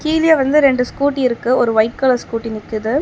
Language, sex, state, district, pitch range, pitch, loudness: Tamil, female, Tamil Nadu, Chennai, 230-285 Hz, 255 Hz, -16 LUFS